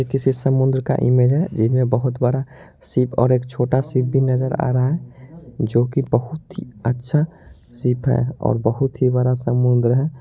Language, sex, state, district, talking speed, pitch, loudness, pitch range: Hindi, male, Bihar, Muzaffarpur, 195 wpm, 130 Hz, -19 LUFS, 125-135 Hz